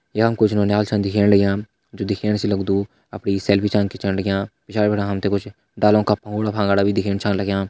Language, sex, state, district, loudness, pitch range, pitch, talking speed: Hindi, male, Uttarakhand, Tehri Garhwal, -20 LUFS, 100-105 Hz, 100 Hz, 205 wpm